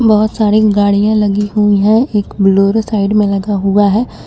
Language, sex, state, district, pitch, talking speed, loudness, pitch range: Hindi, female, Jharkhand, Garhwa, 205 Hz, 180 wpm, -12 LUFS, 200-215 Hz